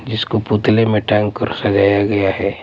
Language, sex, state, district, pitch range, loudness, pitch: Hindi, male, Punjab, Pathankot, 100-110 Hz, -16 LUFS, 105 Hz